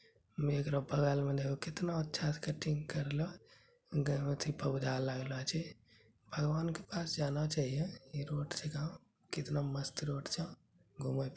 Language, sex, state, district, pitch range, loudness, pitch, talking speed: Hindi, male, Bihar, Bhagalpur, 140-160 Hz, -38 LUFS, 145 Hz, 80 wpm